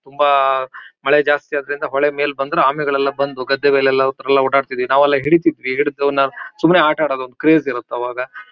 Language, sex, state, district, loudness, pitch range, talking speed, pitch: Kannada, male, Karnataka, Shimoga, -16 LUFS, 135-145 Hz, 170 wpm, 140 Hz